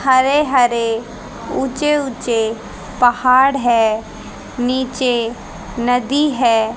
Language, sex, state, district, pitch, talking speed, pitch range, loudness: Hindi, female, Haryana, Jhajjar, 245 Hz, 80 wpm, 230-265 Hz, -16 LUFS